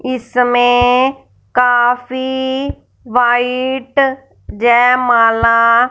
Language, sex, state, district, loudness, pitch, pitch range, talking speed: Hindi, female, Punjab, Fazilka, -13 LUFS, 245 Hz, 240-260 Hz, 40 wpm